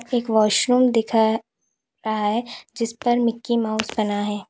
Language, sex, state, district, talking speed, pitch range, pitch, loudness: Hindi, female, Uttar Pradesh, Lalitpur, 135 wpm, 215-235 Hz, 225 Hz, -21 LUFS